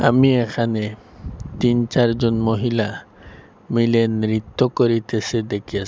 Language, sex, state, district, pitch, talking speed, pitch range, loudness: Bengali, female, Assam, Hailakandi, 115 Hz, 90 wpm, 110-120 Hz, -20 LUFS